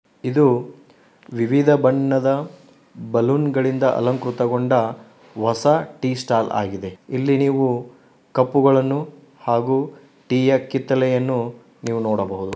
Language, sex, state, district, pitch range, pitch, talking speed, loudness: Kannada, male, Karnataka, Dharwad, 120-135 Hz, 130 Hz, 95 wpm, -20 LUFS